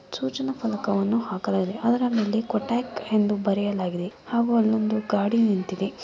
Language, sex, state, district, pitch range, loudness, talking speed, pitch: Kannada, female, Karnataka, Mysore, 200-230 Hz, -25 LUFS, 120 wpm, 215 Hz